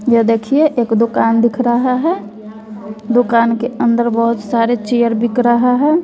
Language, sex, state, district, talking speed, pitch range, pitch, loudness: Hindi, female, Bihar, West Champaran, 160 wpm, 230-245 Hz, 235 Hz, -14 LUFS